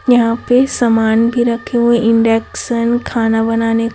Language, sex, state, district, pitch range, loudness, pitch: Hindi, female, Chhattisgarh, Raipur, 225-240 Hz, -14 LUFS, 230 Hz